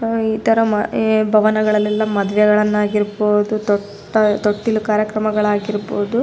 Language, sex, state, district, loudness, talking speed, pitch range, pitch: Kannada, female, Karnataka, Raichur, -17 LUFS, 95 wpm, 210-215 Hz, 210 Hz